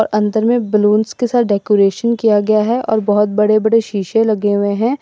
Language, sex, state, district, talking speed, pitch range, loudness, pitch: Hindi, female, Assam, Sonitpur, 205 wpm, 210-225 Hz, -14 LUFS, 215 Hz